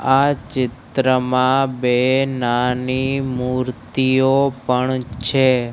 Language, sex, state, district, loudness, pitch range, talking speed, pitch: Gujarati, male, Gujarat, Gandhinagar, -18 LUFS, 125-135 Hz, 75 wpm, 130 Hz